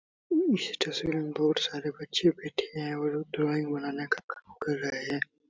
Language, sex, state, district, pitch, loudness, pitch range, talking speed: Hindi, male, Bihar, Supaul, 150 Hz, -30 LUFS, 145-155 Hz, 175 wpm